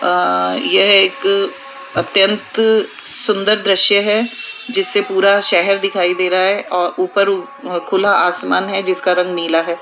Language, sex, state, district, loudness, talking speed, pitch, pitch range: Hindi, female, Rajasthan, Jaipur, -14 LUFS, 140 wpm, 195 Hz, 180-210 Hz